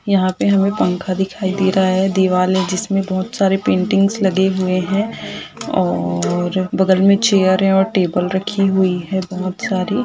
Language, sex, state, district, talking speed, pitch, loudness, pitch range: Hindi, female, Uttar Pradesh, Gorakhpur, 175 wpm, 190 Hz, -16 LUFS, 185-195 Hz